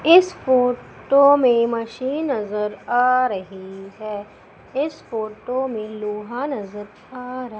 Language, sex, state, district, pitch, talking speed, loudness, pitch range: Hindi, female, Madhya Pradesh, Umaria, 240 Hz, 120 wpm, -21 LUFS, 210-260 Hz